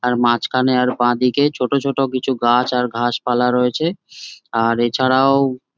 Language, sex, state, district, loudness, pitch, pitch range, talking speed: Bengali, male, West Bengal, Jhargram, -17 LUFS, 125 Hz, 120-135 Hz, 125 wpm